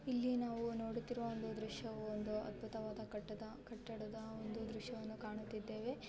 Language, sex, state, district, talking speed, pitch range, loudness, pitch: Kannada, female, Karnataka, Bellary, 110 wpm, 215-230 Hz, -45 LUFS, 220 Hz